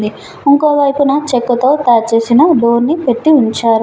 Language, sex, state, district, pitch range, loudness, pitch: Telugu, female, Telangana, Mahabubabad, 235-290 Hz, -11 LUFS, 250 Hz